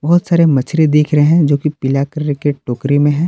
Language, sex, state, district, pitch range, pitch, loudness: Hindi, male, Jharkhand, Palamu, 145-160 Hz, 150 Hz, -14 LUFS